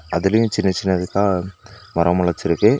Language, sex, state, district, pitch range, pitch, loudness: Tamil, male, Tamil Nadu, Nilgiris, 90-100 Hz, 95 Hz, -19 LUFS